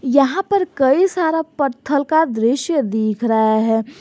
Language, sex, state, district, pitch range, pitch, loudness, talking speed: Hindi, male, Jharkhand, Garhwa, 225-320 Hz, 275 Hz, -17 LUFS, 150 wpm